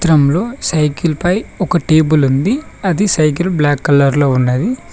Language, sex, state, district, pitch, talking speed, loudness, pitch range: Telugu, male, Telangana, Mahabubabad, 155 Hz, 160 wpm, -14 LUFS, 145-185 Hz